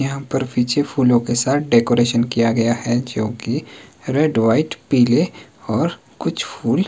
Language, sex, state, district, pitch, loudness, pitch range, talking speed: Hindi, male, Himachal Pradesh, Shimla, 120 Hz, -18 LUFS, 120-135 Hz, 150 wpm